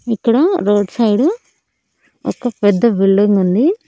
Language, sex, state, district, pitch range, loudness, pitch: Telugu, female, Andhra Pradesh, Annamaya, 205-270 Hz, -14 LUFS, 230 Hz